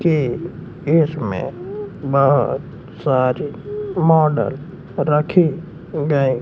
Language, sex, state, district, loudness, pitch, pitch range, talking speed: Hindi, male, Madhya Pradesh, Umaria, -19 LUFS, 155 Hz, 140-170 Hz, 65 wpm